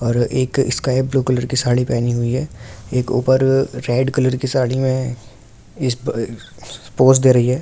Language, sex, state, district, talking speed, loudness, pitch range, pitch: Hindi, male, Delhi, New Delhi, 180 wpm, -18 LUFS, 120-130 Hz, 125 Hz